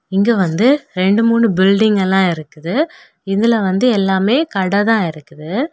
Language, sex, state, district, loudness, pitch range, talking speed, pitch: Tamil, female, Tamil Nadu, Kanyakumari, -15 LUFS, 190-230 Hz, 135 wpm, 200 Hz